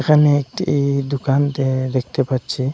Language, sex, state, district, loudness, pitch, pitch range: Bengali, male, Assam, Hailakandi, -18 LUFS, 135 Hz, 130-145 Hz